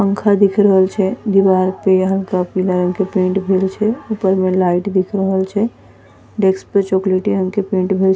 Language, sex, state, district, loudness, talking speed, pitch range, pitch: Angika, female, Bihar, Bhagalpur, -16 LUFS, 200 wpm, 185-200 Hz, 190 Hz